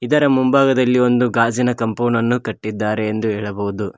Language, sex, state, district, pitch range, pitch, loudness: Kannada, male, Karnataka, Koppal, 110-125 Hz, 115 Hz, -17 LUFS